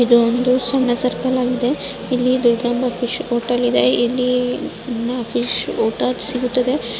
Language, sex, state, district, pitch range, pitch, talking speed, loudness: Kannada, female, Karnataka, Shimoga, 240-250 Hz, 245 Hz, 120 wpm, -18 LUFS